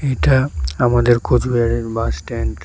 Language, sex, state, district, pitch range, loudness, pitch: Bengali, male, West Bengal, Cooch Behar, 115-125 Hz, -17 LUFS, 120 Hz